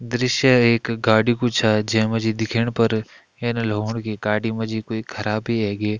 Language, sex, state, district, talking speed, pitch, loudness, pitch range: Hindi, male, Uttarakhand, Tehri Garhwal, 180 wpm, 110 Hz, -21 LUFS, 110-115 Hz